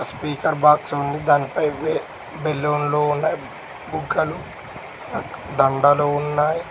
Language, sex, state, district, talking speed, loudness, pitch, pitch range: Telugu, male, Telangana, Mahabubabad, 80 wpm, -21 LUFS, 150 Hz, 145-150 Hz